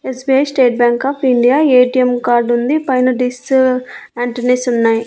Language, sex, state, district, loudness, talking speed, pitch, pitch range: Telugu, female, Andhra Pradesh, Annamaya, -13 LUFS, 140 wpm, 250 Hz, 245-260 Hz